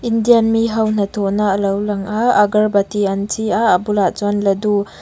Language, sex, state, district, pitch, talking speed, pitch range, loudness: Mizo, female, Mizoram, Aizawl, 205 Hz, 205 wpm, 200-220 Hz, -16 LUFS